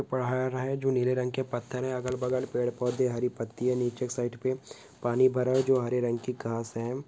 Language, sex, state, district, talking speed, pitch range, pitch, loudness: Hindi, male, West Bengal, Dakshin Dinajpur, 210 wpm, 120-130 Hz, 125 Hz, -29 LUFS